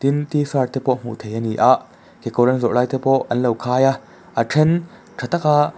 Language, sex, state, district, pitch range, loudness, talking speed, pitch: Mizo, male, Mizoram, Aizawl, 120-150 Hz, -19 LUFS, 240 wpm, 135 Hz